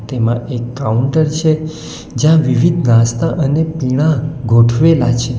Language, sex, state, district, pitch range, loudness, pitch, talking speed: Gujarati, male, Gujarat, Valsad, 120-155 Hz, -14 LUFS, 135 Hz, 120 wpm